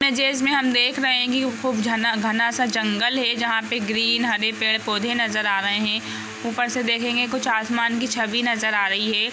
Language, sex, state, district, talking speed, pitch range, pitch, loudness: Hindi, female, Bihar, Purnia, 205 wpm, 220-245 Hz, 235 Hz, -21 LUFS